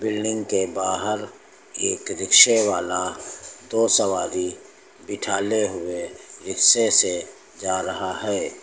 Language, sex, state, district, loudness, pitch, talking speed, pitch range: Hindi, male, Uttar Pradesh, Lucknow, -20 LUFS, 95 Hz, 105 wpm, 95-110 Hz